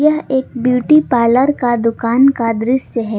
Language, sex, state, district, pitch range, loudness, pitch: Hindi, female, Jharkhand, Palamu, 230-270 Hz, -14 LUFS, 250 Hz